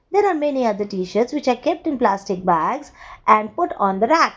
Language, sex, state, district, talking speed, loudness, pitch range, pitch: English, female, Gujarat, Valsad, 220 wpm, -20 LUFS, 205-325 Hz, 250 Hz